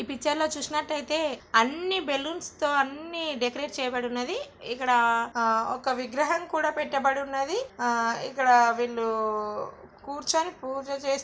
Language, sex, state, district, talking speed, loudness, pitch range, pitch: Telugu, female, Karnataka, Gulbarga, 130 wpm, -27 LUFS, 245-300 Hz, 275 Hz